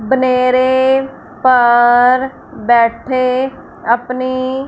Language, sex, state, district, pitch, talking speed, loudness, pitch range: Hindi, female, Punjab, Fazilka, 255 Hz, 50 wpm, -13 LUFS, 245-260 Hz